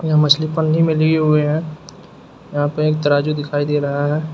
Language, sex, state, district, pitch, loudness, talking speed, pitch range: Hindi, male, Uttar Pradesh, Lucknow, 150 Hz, -17 LUFS, 205 wpm, 145-155 Hz